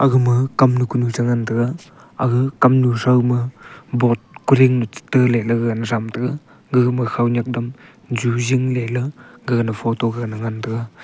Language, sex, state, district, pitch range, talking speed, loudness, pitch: Wancho, male, Arunachal Pradesh, Longding, 115-130 Hz, 160 wpm, -19 LUFS, 120 Hz